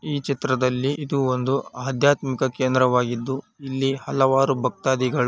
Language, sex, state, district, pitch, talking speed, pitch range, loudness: Kannada, male, Karnataka, Raichur, 135 Hz, 100 wpm, 130-140 Hz, -22 LUFS